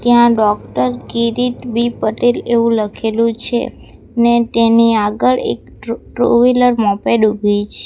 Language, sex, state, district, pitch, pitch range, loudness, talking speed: Gujarati, female, Gujarat, Valsad, 230 Hz, 215-240 Hz, -14 LUFS, 135 wpm